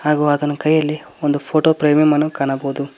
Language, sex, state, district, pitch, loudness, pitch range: Kannada, male, Karnataka, Koppal, 150 Hz, -16 LUFS, 145-155 Hz